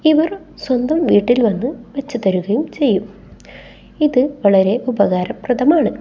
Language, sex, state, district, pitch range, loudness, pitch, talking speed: Malayalam, female, Kerala, Kasaragod, 205-290 Hz, -16 LUFS, 250 Hz, 90 wpm